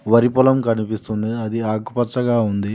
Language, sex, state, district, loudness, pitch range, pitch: Telugu, male, Telangana, Mahabubabad, -19 LUFS, 110-120 Hz, 115 Hz